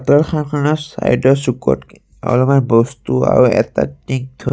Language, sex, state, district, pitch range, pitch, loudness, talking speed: Assamese, male, Assam, Sonitpur, 115-145 Hz, 130 Hz, -15 LUFS, 120 wpm